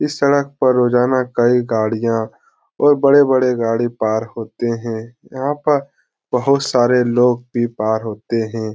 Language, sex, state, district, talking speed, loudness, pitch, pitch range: Hindi, male, Bihar, Jahanabad, 145 wpm, -17 LUFS, 120 Hz, 115-130 Hz